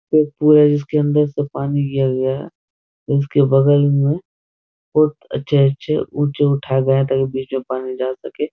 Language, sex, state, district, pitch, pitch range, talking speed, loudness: Hindi, male, Bihar, Jahanabad, 140 Hz, 130-145 Hz, 190 wpm, -17 LUFS